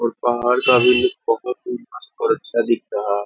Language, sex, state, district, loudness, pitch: Hindi, male, Bihar, Jamui, -19 LUFS, 125 Hz